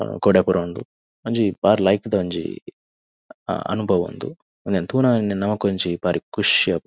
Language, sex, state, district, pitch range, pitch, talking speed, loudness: Tulu, male, Karnataka, Dakshina Kannada, 85-105 Hz, 95 Hz, 165 wpm, -21 LUFS